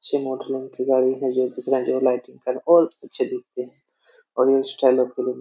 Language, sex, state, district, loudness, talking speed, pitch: Hindi, male, Jharkhand, Jamtara, -22 LUFS, 190 wpm, 135 Hz